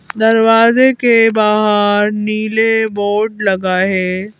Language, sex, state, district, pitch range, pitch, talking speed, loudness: Hindi, female, Madhya Pradesh, Bhopal, 205-225 Hz, 215 Hz, 80 wpm, -13 LUFS